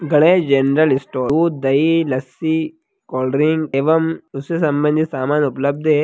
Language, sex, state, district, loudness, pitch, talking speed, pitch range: Hindi, male, Bihar, Sitamarhi, -17 LUFS, 150 Hz, 140 wpm, 135-160 Hz